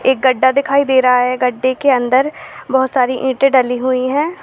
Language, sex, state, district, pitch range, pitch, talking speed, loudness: Hindi, female, Bihar, Jahanabad, 255-275 Hz, 260 Hz, 205 wpm, -14 LUFS